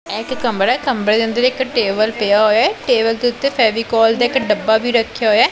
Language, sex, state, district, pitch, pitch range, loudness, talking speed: Punjabi, female, Punjab, Pathankot, 225 Hz, 215-245 Hz, -15 LUFS, 250 wpm